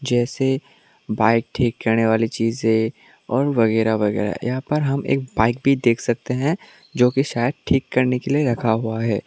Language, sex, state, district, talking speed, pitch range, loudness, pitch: Hindi, male, Tripura, West Tripura, 190 wpm, 115-135 Hz, -20 LUFS, 120 Hz